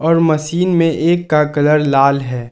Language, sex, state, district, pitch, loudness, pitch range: Hindi, male, Jharkhand, Garhwa, 155 Hz, -14 LUFS, 145-165 Hz